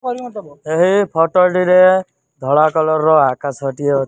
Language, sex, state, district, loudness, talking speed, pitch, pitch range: Odia, male, Odisha, Nuapada, -14 LUFS, 105 wpm, 160 Hz, 145-185 Hz